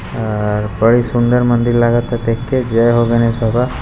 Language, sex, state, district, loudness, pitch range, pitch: Hindi, male, Bihar, Gopalganj, -14 LUFS, 115-120 Hz, 120 Hz